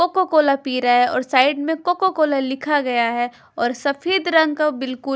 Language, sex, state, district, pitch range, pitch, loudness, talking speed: Hindi, female, Punjab, Pathankot, 255-320 Hz, 280 Hz, -19 LUFS, 210 wpm